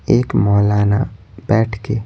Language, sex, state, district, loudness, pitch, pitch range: Hindi, male, Bihar, Patna, -16 LUFS, 105 Hz, 100-115 Hz